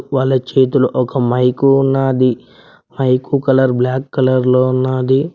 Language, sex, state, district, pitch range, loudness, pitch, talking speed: Telugu, male, Telangana, Mahabubabad, 130-135 Hz, -14 LUFS, 130 Hz, 125 wpm